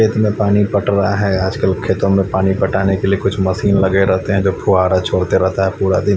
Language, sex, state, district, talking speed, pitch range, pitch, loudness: Hindi, male, Haryana, Charkhi Dadri, 265 wpm, 95-100 Hz, 95 Hz, -15 LUFS